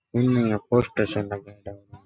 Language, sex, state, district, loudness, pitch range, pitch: Rajasthani, male, Rajasthan, Nagaur, -24 LUFS, 100-120 Hz, 105 Hz